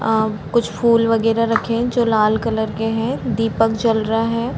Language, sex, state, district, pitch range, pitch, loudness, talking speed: Hindi, female, Chhattisgarh, Balrampur, 220-230 Hz, 225 Hz, -18 LUFS, 195 wpm